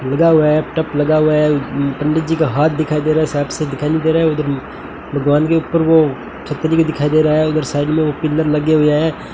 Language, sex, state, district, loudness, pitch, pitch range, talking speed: Hindi, male, Rajasthan, Bikaner, -15 LUFS, 155 Hz, 150-160 Hz, 265 wpm